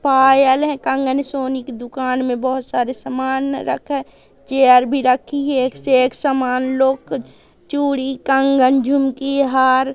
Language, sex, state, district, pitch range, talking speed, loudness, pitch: Hindi, female, Madhya Pradesh, Katni, 260-275 Hz, 155 wpm, -17 LUFS, 265 Hz